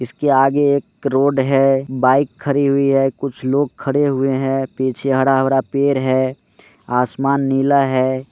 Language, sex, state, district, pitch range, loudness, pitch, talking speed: Hindi, male, Rajasthan, Nagaur, 130-140 Hz, -17 LUFS, 135 Hz, 130 wpm